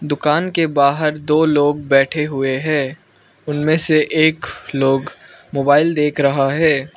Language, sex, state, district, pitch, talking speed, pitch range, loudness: Hindi, male, Arunachal Pradesh, Lower Dibang Valley, 150 Hz, 140 wpm, 140-155 Hz, -16 LUFS